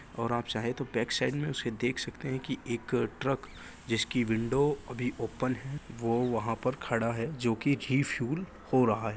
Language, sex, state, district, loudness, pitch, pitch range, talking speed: Hindi, male, Bihar, Jahanabad, -32 LUFS, 125 Hz, 115-135 Hz, 205 wpm